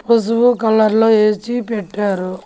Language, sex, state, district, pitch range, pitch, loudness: Telugu, female, Andhra Pradesh, Annamaya, 210-230 Hz, 220 Hz, -15 LUFS